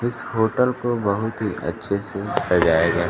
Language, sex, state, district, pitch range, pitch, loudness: Hindi, male, Bihar, Kaimur, 90-115 Hz, 100 Hz, -22 LUFS